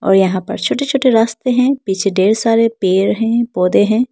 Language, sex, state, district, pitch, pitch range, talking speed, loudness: Hindi, female, Arunachal Pradesh, Lower Dibang Valley, 225 Hz, 195-240 Hz, 190 wpm, -14 LUFS